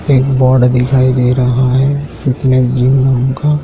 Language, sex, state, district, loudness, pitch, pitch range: Hindi, male, Madhya Pradesh, Dhar, -11 LUFS, 130 Hz, 125-135 Hz